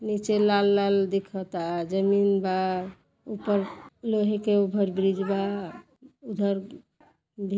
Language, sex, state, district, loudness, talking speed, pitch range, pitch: Bhojpuri, female, Uttar Pradesh, Gorakhpur, -26 LUFS, 120 wpm, 195-210 Hz, 200 Hz